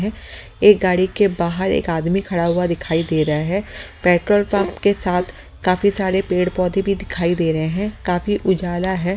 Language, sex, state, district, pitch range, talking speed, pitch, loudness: Hindi, female, Delhi, New Delhi, 175-195 Hz, 175 wpm, 185 Hz, -19 LUFS